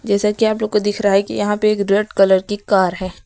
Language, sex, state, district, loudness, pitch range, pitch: Hindi, female, Uttar Pradesh, Lucknow, -17 LUFS, 195-210 Hz, 205 Hz